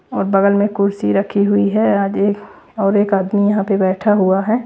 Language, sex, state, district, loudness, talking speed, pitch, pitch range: Hindi, female, Bihar, West Champaran, -15 LUFS, 220 wpm, 200 Hz, 195-205 Hz